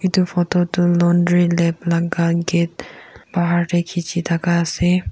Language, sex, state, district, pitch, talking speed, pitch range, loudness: Nagamese, female, Nagaland, Kohima, 175 Hz, 140 wpm, 170-175 Hz, -18 LUFS